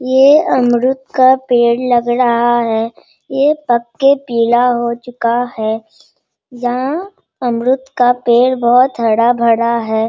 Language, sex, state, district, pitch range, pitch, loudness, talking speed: Hindi, female, Bihar, Sitamarhi, 235-260 Hz, 245 Hz, -13 LUFS, 135 wpm